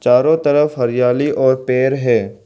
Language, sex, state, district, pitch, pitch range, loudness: Hindi, male, Arunachal Pradesh, Lower Dibang Valley, 130 Hz, 125-145 Hz, -15 LUFS